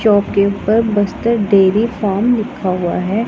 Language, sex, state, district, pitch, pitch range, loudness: Hindi, female, Punjab, Pathankot, 205 Hz, 195-225 Hz, -15 LUFS